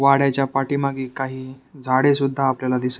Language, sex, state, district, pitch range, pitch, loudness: Marathi, male, Maharashtra, Pune, 130-140 Hz, 135 Hz, -21 LUFS